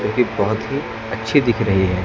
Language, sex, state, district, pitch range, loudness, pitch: Hindi, male, Maharashtra, Gondia, 105-120 Hz, -19 LUFS, 110 Hz